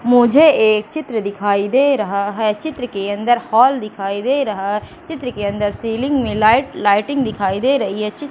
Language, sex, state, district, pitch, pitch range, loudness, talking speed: Hindi, female, Madhya Pradesh, Katni, 220 Hz, 205-270 Hz, -17 LUFS, 190 wpm